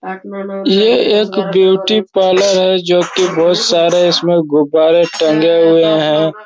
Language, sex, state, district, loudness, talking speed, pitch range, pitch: Hindi, male, Chhattisgarh, Raigarh, -11 LUFS, 140 wpm, 165-195 Hz, 180 Hz